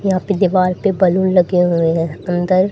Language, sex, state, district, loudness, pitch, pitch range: Hindi, female, Haryana, Charkhi Dadri, -15 LUFS, 185 Hz, 175-190 Hz